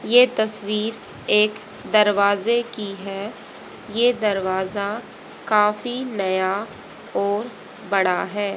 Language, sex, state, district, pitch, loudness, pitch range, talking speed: Hindi, female, Haryana, Jhajjar, 210 Hz, -21 LUFS, 200-220 Hz, 90 wpm